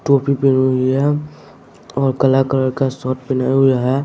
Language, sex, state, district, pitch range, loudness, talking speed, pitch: Hindi, male, Bihar, West Champaran, 130-135 Hz, -16 LUFS, 175 wpm, 135 Hz